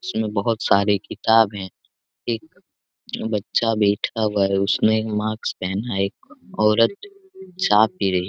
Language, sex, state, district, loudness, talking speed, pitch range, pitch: Hindi, male, Jharkhand, Jamtara, -21 LUFS, 150 wpm, 100-115 Hz, 105 Hz